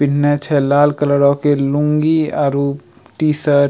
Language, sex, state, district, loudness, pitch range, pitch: Angika, male, Bihar, Bhagalpur, -15 LUFS, 140-150 Hz, 145 Hz